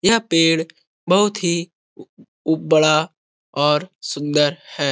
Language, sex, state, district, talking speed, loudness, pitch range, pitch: Hindi, male, Bihar, Jahanabad, 110 wpm, -18 LUFS, 150-175 Hz, 160 Hz